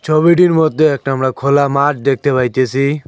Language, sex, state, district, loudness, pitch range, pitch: Bengali, male, West Bengal, Cooch Behar, -13 LUFS, 135-155 Hz, 140 Hz